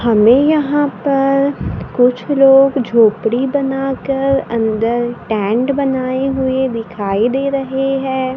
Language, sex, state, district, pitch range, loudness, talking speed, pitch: Hindi, female, Maharashtra, Gondia, 235-275 Hz, -15 LUFS, 110 wpm, 265 Hz